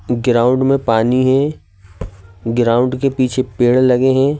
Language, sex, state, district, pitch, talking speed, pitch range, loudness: Hindi, male, Madhya Pradesh, Bhopal, 125 Hz, 135 wpm, 115-130 Hz, -14 LUFS